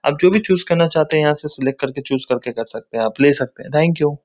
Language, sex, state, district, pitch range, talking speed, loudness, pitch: Hindi, male, West Bengal, Kolkata, 135-155 Hz, 340 wpm, -18 LUFS, 145 Hz